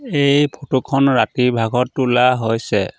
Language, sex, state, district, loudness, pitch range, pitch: Assamese, male, Assam, Sonitpur, -17 LUFS, 125-140 Hz, 130 Hz